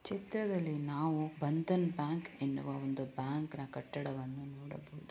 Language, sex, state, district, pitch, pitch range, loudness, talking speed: Kannada, female, Karnataka, Raichur, 145 Hz, 140-160 Hz, -38 LUFS, 105 wpm